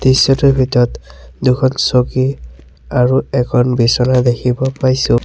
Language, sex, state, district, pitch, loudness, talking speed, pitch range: Assamese, male, Assam, Sonitpur, 125 Hz, -14 LUFS, 105 wpm, 120-130 Hz